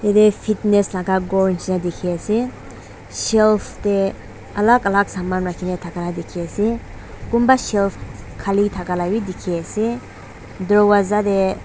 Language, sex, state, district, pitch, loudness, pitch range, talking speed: Nagamese, female, Nagaland, Dimapur, 195 Hz, -19 LUFS, 180-210 Hz, 130 wpm